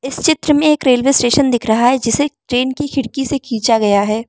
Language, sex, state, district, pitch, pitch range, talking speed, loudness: Hindi, female, Arunachal Pradesh, Lower Dibang Valley, 260 Hz, 235-285 Hz, 250 wpm, -14 LUFS